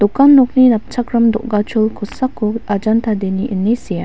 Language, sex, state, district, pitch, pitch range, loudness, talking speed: Garo, female, Meghalaya, West Garo Hills, 225 Hz, 210-245 Hz, -15 LUFS, 135 wpm